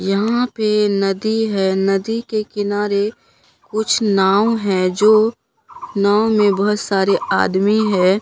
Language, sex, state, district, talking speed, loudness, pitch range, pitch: Hindi, female, Bihar, Katihar, 125 wpm, -17 LUFS, 195-220 Hz, 205 Hz